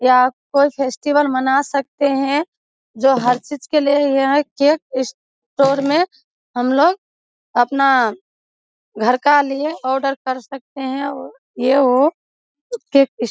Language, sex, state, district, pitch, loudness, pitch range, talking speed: Hindi, female, Bihar, Kishanganj, 275 Hz, -17 LUFS, 260-290 Hz, 135 wpm